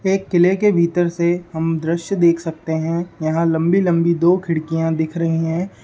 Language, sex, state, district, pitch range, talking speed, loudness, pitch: Hindi, male, Uttar Pradesh, Ghazipur, 165-175 Hz, 185 wpm, -18 LUFS, 170 Hz